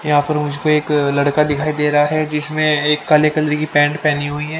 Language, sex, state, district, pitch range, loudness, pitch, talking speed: Hindi, male, Haryana, Charkhi Dadri, 145-155 Hz, -16 LUFS, 150 Hz, 235 wpm